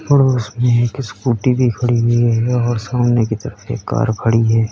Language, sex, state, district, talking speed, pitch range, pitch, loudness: Hindi, male, Uttar Pradesh, Lalitpur, 190 wpm, 115-125 Hz, 120 Hz, -16 LUFS